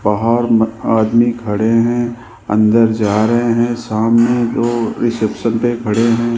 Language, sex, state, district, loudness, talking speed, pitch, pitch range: Hindi, male, Rajasthan, Jaipur, -14 LUFS, 140 wpm, 115 Hz, 110-120 Hz